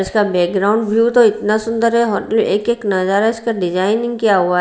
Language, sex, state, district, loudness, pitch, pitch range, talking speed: Hindi, female, Bihar, Patna, -15 LUFS, 215 Hz, 195-230 Hz, 210 wpm